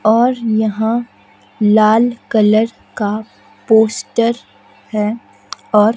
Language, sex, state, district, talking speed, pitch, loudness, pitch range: Hindi, female, Himachal Pradesh, Shimla, 80 wpm, 220 Hz, -15 LUFS, 215-230 Hz